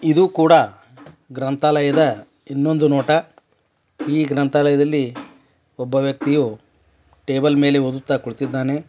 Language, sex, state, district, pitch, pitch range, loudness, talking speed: Kannada, male, Karnataka, Belgaum, 145 Hz, 135-150 Hz, -18 LUFS, 90 wpm